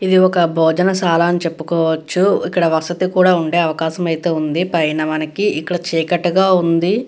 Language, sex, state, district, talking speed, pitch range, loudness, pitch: Telugu, female, Andhra Pradesh, Guntur, 160 wpm, 160-185 Hz, -16 LUFS, 170 Hz